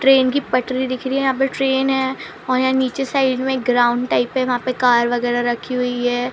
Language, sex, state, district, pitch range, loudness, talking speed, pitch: Hindi, female, Jharkhand, Sahebganj, 245-265 Hz, -18 LUFS, 235 wpm, 255 Hz